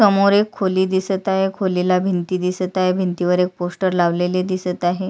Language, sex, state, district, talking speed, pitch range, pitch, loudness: Marathi, female, Maharashtra, Sindhudurg, 190 wpm, 180-190 Hz, 185 Hz, -19 LUFS